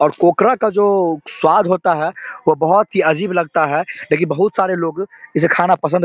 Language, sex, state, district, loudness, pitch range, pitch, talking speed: Hindi, male, Bihar, Samastipur, -16 LUFS, 160-200 Hz, 180 Hz, 210 wpm